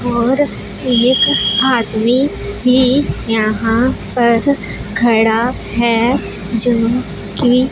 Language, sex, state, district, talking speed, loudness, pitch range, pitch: Hindi, female, Punjab, Pathankot, 80 wpm, -14 LUFS, 225-255 Hz, 240 Hz